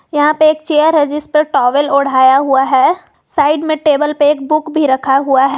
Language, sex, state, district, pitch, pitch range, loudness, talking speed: Hindi, female, Jharkhand, Garhwa, 295 Hz, 275-305 Hz, -12 LUFS, 225 wpm